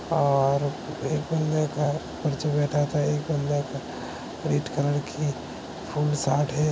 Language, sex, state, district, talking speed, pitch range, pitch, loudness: Hindi, male, Uttar Pradesh, Hamirpur, 135 wpm, 140-150 Hz, 145 Hz, -26 LUFS